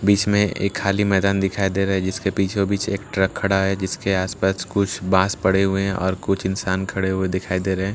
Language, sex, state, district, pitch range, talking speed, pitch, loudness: Hindi, male, Bihar, Katihar, 95-100 Hz, 250 wpm, 95 Hz, -21 LUFS